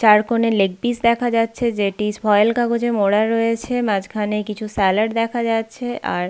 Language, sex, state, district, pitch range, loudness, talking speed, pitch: Bengali, female, West Bengal, Paschim Medinipur, 210-235 Hz, -19 LUFS, 150 wpm, 225 Hz